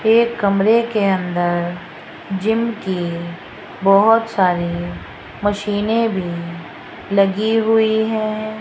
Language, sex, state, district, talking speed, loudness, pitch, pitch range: Hindi, female, Rajasthan, Jaipur, 90 wpm, -18 LUFS, 200 Hz, 175-220 Hz